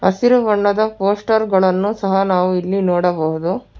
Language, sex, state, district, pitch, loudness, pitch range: Kannada, female, Karnataka, Bangalore, 195 Hz, -16 LUFS, 180-210 Hz